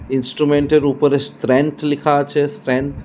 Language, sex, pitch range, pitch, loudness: Bengali, male, 140-150 Hz, 145 Hz, -17 LUFS